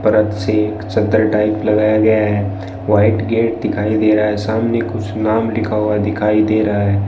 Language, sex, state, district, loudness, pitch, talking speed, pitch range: Hindi, male, Rajasthan, Bikaner, -16 LUFS, 105 Hz, 185 wpm, 105-110 Hz